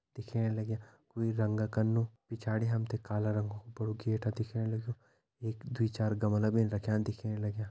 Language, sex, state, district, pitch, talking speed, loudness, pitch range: Hindi, male, Uttarakhand, Tehri Garhwal, 110 Hz, 180 wpm, -35 LUFS, 110-115 Hz